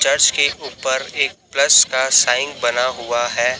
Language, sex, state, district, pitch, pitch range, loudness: Hindi, male, Chhattisgarh, Raipur, 130 Hz, 120-130 Hz, -16 LUFS